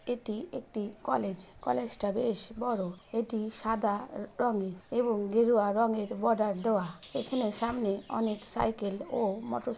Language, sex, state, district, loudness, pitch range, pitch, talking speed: Bengali, female, West Bengal, Paschim Medinipur, -32 LUFS, 200-230 Hz, 220 Hz, 135 wpm